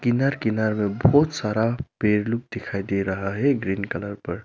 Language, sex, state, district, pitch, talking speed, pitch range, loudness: Hindi, male, Arunachal Pradesh, Lower Dibang Valley, 110 Hz, 190 wpm, 100-120 Hz, -23 LUFS